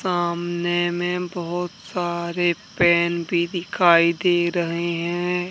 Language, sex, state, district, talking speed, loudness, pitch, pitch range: Hindi, male, Jharkhand, Deoghar, 110 wpm, -22 LUFS, 175 Hz, 170-180 Hz